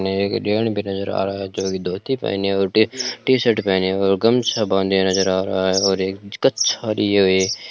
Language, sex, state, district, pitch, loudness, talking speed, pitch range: Hindi, male, Rajasthan, Bikaner, 100 Hz, -19 LUFS, 210 wpm, 95-110 Hz